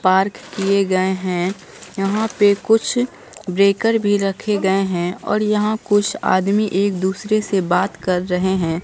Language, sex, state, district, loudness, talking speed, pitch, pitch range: Hindi, female, Bihar, Katihar, -18 LUFS, 155 wpm, 195 Hz, 185-210 Hz